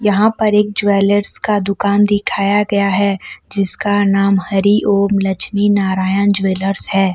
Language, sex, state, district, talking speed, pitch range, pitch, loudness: Hindi, female, Jharkhand, Deoghar, 145 wpm, 195-205 Hz, 200 Hz, -14 LUFS